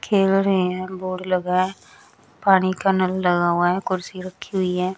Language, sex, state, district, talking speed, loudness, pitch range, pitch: Hindi, female, Bihar, West Champaran, 180 wpm, -21 LUFS, 180-190 Hz, 185 Hz